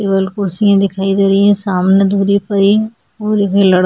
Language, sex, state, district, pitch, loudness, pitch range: Hindi, female, Chhattisgarh, Sukma, 195 Hz, -13 LUFS, 195-205 Hz